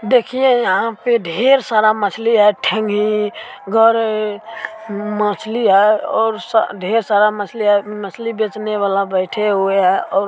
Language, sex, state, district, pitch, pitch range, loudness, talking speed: Maithili, female, Bihar, Supaul, 215 Hz, 205-225 Hz, -16 LUFS, 150 wpm